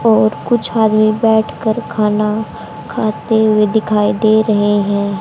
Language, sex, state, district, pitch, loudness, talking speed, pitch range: Hindi, female, Haryana, Charkhi Dadri, 215 Hz, -14 LUFS, 125 wpm, 210-220 Hz